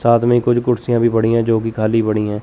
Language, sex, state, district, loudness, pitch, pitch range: Hindi, male, Chandigarh, Chandigarh, -16 LUFS, 115 Hz, 110-120 Hz